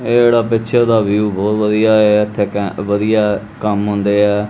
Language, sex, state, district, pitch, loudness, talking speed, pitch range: Punjabi, male, Punjab, Kapurthala, 105 Hz, -14 LUFS, 185 wpm, 105-110 Hz